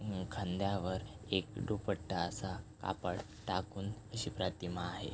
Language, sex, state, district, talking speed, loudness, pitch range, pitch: Marathi, male, Maharashtra, Chandrapur, 115 wpm, -40 LUFS, 90-105 Hz, 100 Hz